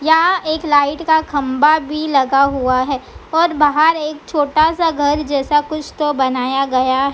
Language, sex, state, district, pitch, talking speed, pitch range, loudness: Hindi, female, Bihar, Begusarai, 295 Hz, 175 wpm, 275-315 Hz, -15 LUFS